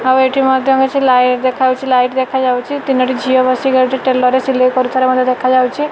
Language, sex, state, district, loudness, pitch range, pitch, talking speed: Odia, female, Odisha, Malkangiri, -13 LUFS, 255-265 Hz, 255 Hz, 150 wpm